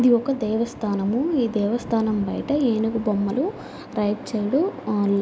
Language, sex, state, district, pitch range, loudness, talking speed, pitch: Telugu, female, Andhra Pradesh, Guntur, 210-250 Hz, -23 LUFS, 125 wpm, 225 Hz